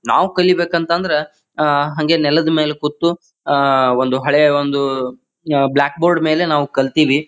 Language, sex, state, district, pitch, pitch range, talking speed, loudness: Kannada, male, Karnataka, Bijapur, 150 Hz, 140-165 Hz, 150 wpm, -16 LUFS